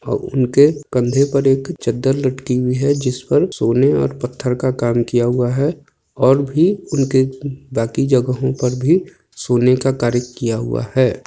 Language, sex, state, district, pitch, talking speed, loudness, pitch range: Hindi, male, Jharkhand, Jamtara, 130 Hz, 175 wpm, -17 LUFS, 125-140 Hz